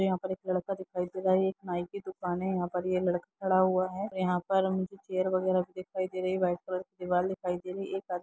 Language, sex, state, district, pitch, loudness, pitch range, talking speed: Hindi, female, Jharkhand, Jamtara, 185 Hz, -31 LUFS, 180-190 Hz, 290 wpm